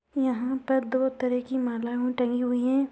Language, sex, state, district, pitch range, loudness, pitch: Hindi, female, Bihar, Madhepura, 245-265 Hz, -27 LUFS, 255 Hz